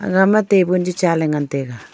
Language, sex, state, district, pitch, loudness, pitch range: Wancho, female, Arunachal Pradesh, Longding, 180 Hz, -17 LUFS, 150-190 Hz